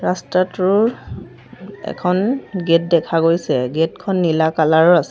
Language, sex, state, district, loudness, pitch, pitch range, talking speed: Assamese, female, Assam, Sonitpur, -17 LUFS, 170 Hz, 160-185 Hz, 130 wpm